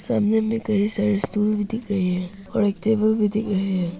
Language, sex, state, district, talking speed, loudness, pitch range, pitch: Hindi, female, Arunachal Pradesh, Papum Pare, 240 wpm, -20 LUFS, 195-215 Hz, 210 Hz